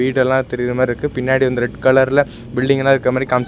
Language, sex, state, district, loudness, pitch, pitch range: Tamil, male, Tamil Nadu, Nilgiris, -16 LUFS, 130 Hz, 125-135 Hz